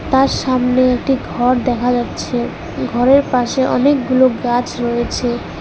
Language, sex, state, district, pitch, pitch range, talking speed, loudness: Bengali, female, West Bengal, Alipurduar, 250 Hz, 245-260 Hz, 115 wpm, -16 LUFS